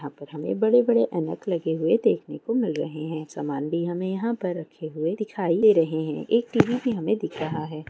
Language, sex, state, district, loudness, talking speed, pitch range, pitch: Hindi, female, Bihar, Saharsa, -25 LUFS, 230 wpm, 155-220 Hz, 170 Hz